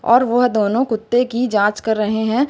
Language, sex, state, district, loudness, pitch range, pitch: Hindi, female, Uttar Pradesh, Lucknow, -17 LUFS, 215-245 Hz, 230 Hz